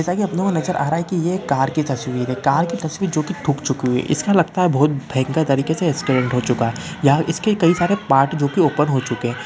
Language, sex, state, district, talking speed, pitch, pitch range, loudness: Hindi, male, Uttarakhand, Uttarkashi, 285 wpm, 155 Hz, 135-175 Hz, -19 LUFS